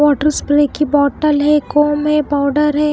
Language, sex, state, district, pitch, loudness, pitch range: Hindi, female, Maharashtra, Washim, 295 Hz, -14 LUFS, 290-300 Hz